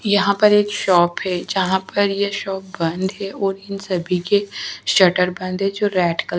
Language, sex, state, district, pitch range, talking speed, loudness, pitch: Hindi, female, Haryana, Charkhi Dadri, 180-200 Hz, 205 wpm, -19 LUFS, 195 Hz